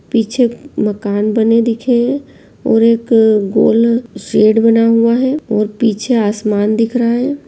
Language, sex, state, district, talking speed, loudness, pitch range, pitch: Hindi, female, Bihar, Jahanabad, 145 wpm, -13 LUFS, 215-240 Hz, 230 Hz